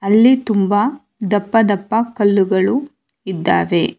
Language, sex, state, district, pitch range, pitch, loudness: Kannada, female, Karnataka, Bangalore, 195-235 Hz, 205 Hz, -16 LUFS